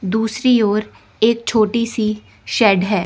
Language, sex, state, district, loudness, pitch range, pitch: Hindi, female, Chandigarh, Chandigarh, -17 LUFS, 210-230 Hz, 220 Hz